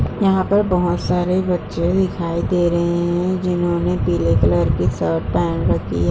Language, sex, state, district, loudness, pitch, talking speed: Hindi, female, Uttar Pradesh, Jyotiba Phule Nagar, -18 LUFS, 170 Hz, 165 wpm